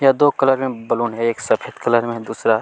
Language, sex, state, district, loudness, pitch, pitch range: Hindi, male, Chhattisgarh, Kabirdham, -19 LUFS, 120 Hz, 115-135 Hz